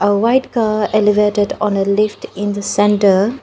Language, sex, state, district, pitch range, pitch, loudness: English, female, Nagaland, Dimapur, 205-215 Hz, 210 Hz, -15 LUFS